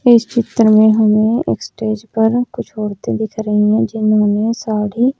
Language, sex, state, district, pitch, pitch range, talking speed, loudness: Hindi, female, Haryana, Rohtak, 220 Hz, 215-230 Hz, 150 wpm, -15 LUFS